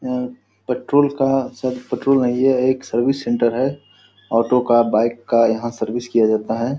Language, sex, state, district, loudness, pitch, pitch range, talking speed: Hindi, male, Bihar, Purnia, -18 LUFS, 125 Hz, 115-130 Hz, 175 wpm